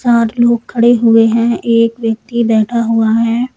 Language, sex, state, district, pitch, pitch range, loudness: Hindi, female, Uttar Pradesh, Lalitpur, 230 Hz, 225-235 Hz, -12 LUFS